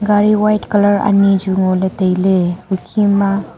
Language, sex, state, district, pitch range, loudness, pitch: Wancho, female, Arunachal Pradesh, Longding, 190-205 Hz, -14 LUFS, 200 Hz